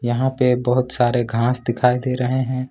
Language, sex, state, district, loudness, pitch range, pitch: Hindi, male, Jharkhand, Ranchi, -19 LUFS, 120-130 Hz, 125 Hz